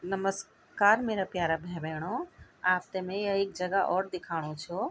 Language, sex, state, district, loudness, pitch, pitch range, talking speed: Garhwali, female, Uttarakhand, Tehri Garhwal, -30 LUFS, 185 Hz, 175-195 Hz, 135 wpm